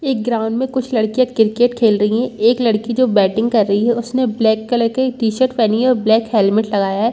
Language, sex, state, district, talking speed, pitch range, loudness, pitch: Hindi, female, Chhattisgarh, Balrampur, 245 wpm, 220-245 Hz, -16 LUFS, 230 Hz